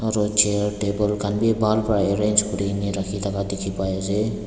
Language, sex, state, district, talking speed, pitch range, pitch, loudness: Nagamese, male, Nagaland, Dimapur, 200 wpm, 100-105 Hz, 105 Hz, -22 LUFS